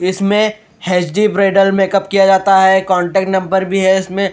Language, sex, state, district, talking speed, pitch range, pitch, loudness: Hindi, male, Bihar, Katihar, 165 wpm, 190-195 Hz, 195 Hz, -13 LUFS